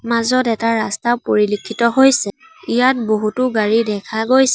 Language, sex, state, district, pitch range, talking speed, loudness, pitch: Assamese, female, Assam, Sonitpur, 215-255 Hz, 130 wpm, -16 LUFS, 230 Hz